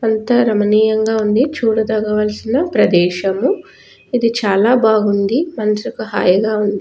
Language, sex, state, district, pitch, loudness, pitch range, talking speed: Telugu, female, Telangana, Nalgonda, 215 Hz, -15 LUFS, 210-230 Hz, 90 wpm